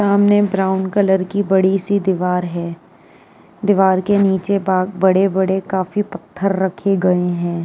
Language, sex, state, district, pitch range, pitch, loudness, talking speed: Hindi, female, Uttar Pradesh, Jyotiba Phule Nagar, 185-200 Hz, 190 Hz, -17 LUFS, 140 wpm